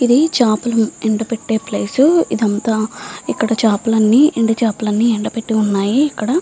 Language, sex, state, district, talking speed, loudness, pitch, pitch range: Telugu, female, Andhra Pradesh, Visakhapatnam, 160 wpm, -15 LUFS, 225 Hz, 215-235 Hz